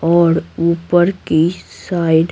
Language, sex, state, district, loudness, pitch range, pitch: Hindi, female, Bihar, Patna, -15 LUFS, 165-175 Hz, 170 Hz